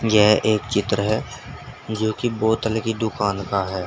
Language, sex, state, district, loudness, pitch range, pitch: Hindi, male, Uttar Pradesh, Saharanpur, -21 LUFS, 105-110 Hz, 110 Hz